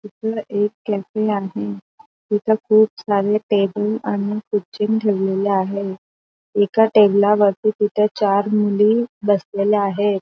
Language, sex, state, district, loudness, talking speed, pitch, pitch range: Marathi, female, Maharashtra, Aurangabad, -19 LUFS, 115 wpm, 205 Hz, 200-215 Hz